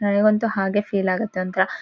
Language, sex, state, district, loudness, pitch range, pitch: Kannada, female, Karnataka, Shimoga, -21 LUFS, 195-215 Hz, 200 Hz